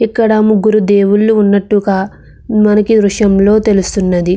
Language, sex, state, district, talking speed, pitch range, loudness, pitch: Telugu, female, Andhra Pradesh, Krishna, 80 wpm, 200-215 Hz, -11 LUFS, 210 Hz